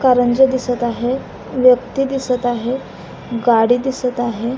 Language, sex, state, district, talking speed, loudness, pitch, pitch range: Marathi, female, Maharashtra, Pune, 120 wpm, -17 LUFS, 250 Hz, 240-260 Hz